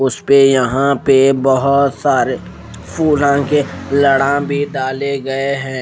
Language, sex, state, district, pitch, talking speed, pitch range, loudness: Hindi, male, Chandigarh, Chandigarh, 140 Hz, 135 wpm, 135-140 Hz, -14 LUFS